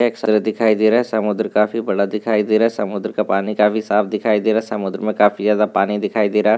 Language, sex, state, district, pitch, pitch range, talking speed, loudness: Hindi, male, Rajasthan, Nagaur, 105 Hz, 105-110 Hz, 265 wpm, -18 LUFS